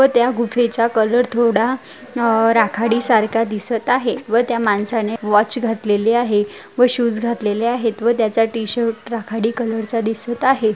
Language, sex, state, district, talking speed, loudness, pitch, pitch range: Marathi, female, Maharashtra, Dhule, 160 wpm, -18 LUFS, 230 Hz, 220-240 Hz